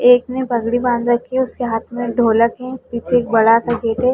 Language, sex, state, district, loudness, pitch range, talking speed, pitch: Hindi, female, Uttar Pradesh, Jalaun, -17 LUFS, 235-245 Hz, 290 wpm, 240 Hz